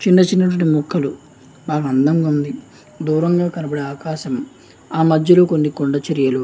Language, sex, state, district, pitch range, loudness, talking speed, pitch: Telugu, male, Andhra Pradesh, Anantapur, 140-170 Hz, -17 LUFS, 140 wpm, 155 Hz